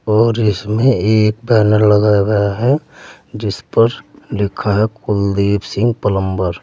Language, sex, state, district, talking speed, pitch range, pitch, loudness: Hindi, male, Uttar Pradesh, Saharanpur, 135 wpm, 100-115 Hz, 105 Hz, -15 LUFS